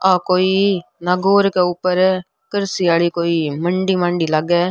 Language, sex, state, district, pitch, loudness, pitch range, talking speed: Rajasthani, female, Rajasthan, Nagaur, 180 Hz, -17 LUFS, 170-190 Hz, 155 wpm